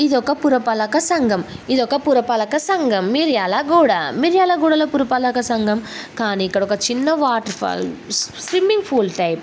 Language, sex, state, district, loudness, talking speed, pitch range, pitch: Telugu, female, Telangana, Karimnagar, -18 LUFS, 145 wpm, 220-310 Hz, 255 Hz